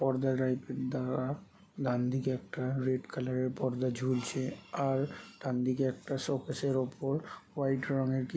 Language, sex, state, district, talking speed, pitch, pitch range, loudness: Bengali, male, West Bengal, Jhargram, 130 wpm, 130 Hz, 130-135 Hz, -34 LUFS